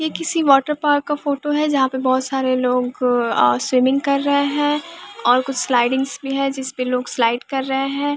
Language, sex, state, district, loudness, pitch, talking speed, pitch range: Hindi, female, Bihar, West Champaran, -19 LUFS, 270 Hz, 215 wpm, 255-285 Hz